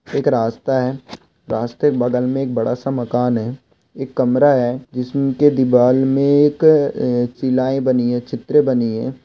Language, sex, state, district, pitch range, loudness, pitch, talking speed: Hindi, male, Goa, North and South Goa, 125-135 Hz, -17 LUFS, 130 Hz, 160 wpm